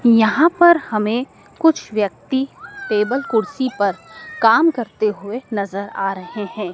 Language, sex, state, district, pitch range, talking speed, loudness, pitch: Hindi, male, Madhya Pradesh, Dhar, 205-275 Hz, 135 wpm, -18 LUFS, 225 Hz